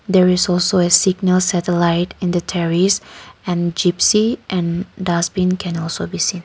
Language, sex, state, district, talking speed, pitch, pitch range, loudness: English, female, Nagaland, Kohima, 160 wpm, 180 Hz, 175-185 Hz, -17 LUFS